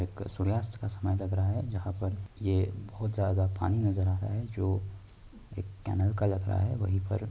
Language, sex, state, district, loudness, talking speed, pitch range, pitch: Hindi, male, Bihar, Saharsa, -32 LUFS, 215 wpm, 95-105 Hz, 100 Hz